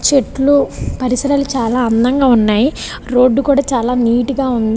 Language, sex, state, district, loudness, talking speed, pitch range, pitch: Telugu, female, Andhra Pradesh, Visakhapatnam, -14 LUFS, 140 wpm, 240-275 Hz, 255 Hz